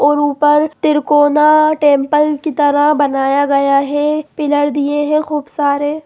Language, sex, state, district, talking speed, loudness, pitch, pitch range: Hindi, female, Bihar, Sitamarhi, 140 wpm, -13 LUFS, 295 Hz, 285-300 Hz